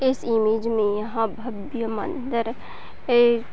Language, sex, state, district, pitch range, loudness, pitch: Hindi, female, Uttar Pradesh, Deoria, 220-240 Hz, -23 LUFS, 230 Hz